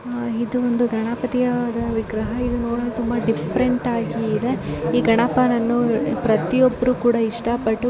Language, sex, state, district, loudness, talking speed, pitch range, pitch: Kannada, female, Karnataka, Raichur, -20 LUFS, 105 wpm, 230-245 Hz, 235 Hz